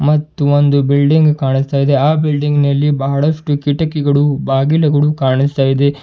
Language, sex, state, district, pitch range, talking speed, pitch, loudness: Kannada, male, Karnataka, Bidar, 140-150 Hz, 110 wpm, 145 Hz, -13 LUFS